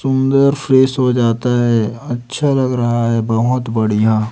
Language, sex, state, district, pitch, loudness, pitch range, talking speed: Hindi, male, Chhattisgarh, Raipur, 120 Hz, -15 LUFS, 115-130 Hz, 155 wpm